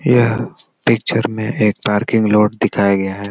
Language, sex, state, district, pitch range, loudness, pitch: Hindi, male, Bihar, Gaya, 100-115 Hz, -16 LUFS, 105 Hz